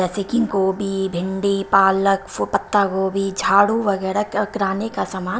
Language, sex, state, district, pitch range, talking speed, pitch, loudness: Hindi, female, Himachal Pradesh, Shimla, 190-205 Hz, 135 wpm, 195 Hz, -19 LUFS